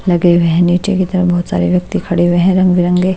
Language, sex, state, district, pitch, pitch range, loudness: Hindi, female, Haryana, Jhajjar, 180 Hz, 175-185 Hz, -13 LUFS